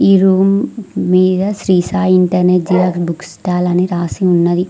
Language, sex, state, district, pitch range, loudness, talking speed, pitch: Telugu, female, Telangana, Mahabubabad, 180-190 Hz, -13 LUFS, 155 wpm, 185 Hz